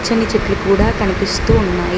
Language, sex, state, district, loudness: Telugu, female, Telangana, Mahabubabad, -15 LUFS